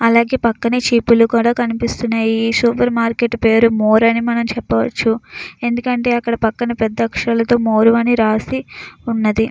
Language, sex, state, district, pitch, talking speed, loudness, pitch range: Telugu, female, Andhra Pradesh, Chittoor, 230 Hz, 120 wpm, -15 LUFS, 225-235 Hz